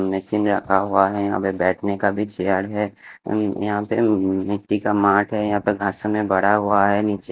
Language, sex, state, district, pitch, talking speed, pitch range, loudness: Hindi, male, Himachal Pradesh, Shimla, 100 Hz, 205 wpm, 100-105 Hz, -20 LUFS